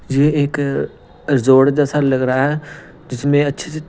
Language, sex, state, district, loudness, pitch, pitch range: Hindi, male, Punjab, Pathankot, -16 LUFS, 145 Hz, 135-145 Hz